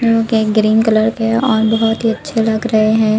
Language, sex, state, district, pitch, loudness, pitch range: Hindi, female, Uttar Pradesh, Budaun, 225 Hz, -14 LUFS, 220-225 Hz